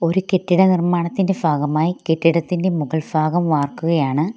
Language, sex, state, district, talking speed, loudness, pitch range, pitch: Malayalam, female, Kerala, Kollam, 95 wpm, -18 LUFS, 155-180 Hz, 170 Hz